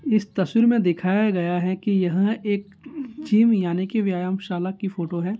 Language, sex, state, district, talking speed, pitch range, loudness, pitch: Hindi, male, Bihar, Gaya, 180 wpm, 185-220 Hz, -22 LUFS, 195 Hz